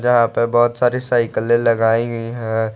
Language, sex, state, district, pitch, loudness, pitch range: Hindi, male, Jharkhand, Garhwa, 115 Hz, -17 LUFS, 115-120 Hz